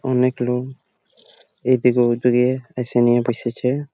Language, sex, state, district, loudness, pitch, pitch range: Bengali, male, West Bengal, Jhargram, -19 LUFS, 125 Hz, 120-130 Hz